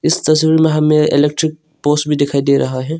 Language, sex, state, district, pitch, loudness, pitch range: Hindi, male, Arunachal Pradesh, Longding, 150 Hz, -14 LUFS, 145-155 Hz